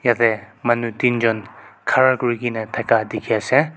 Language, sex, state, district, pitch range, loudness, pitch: Nagamese, male, Nagaland, Kohima, 115-125 Hz, -19 LUFS, 120 Hz